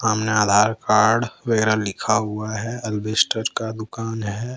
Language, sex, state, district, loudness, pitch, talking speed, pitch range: Hindi, male, Jharkhand, Deoghar, -21 LUFS, 110 Hz, 145 wpm, 110-115 Hz